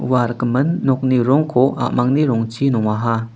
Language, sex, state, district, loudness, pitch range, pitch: Garo, male, Meghalaya, West Garo Hills, -17 LUFS, 120-135 Hz, 125 Hz